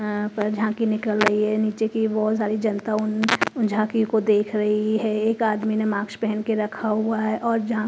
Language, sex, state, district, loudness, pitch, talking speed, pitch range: Hindi, female, Punjab, Kapurthala, -23 LUFS, 215 Hz, 230 wpm, 215-220 Hz